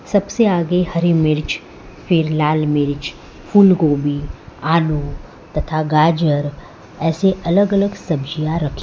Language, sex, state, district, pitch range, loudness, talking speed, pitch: Hindi, male, Gujarat, Valsad, 150-180 Hz, -17 LUFS, 115 wpm, 160 Hz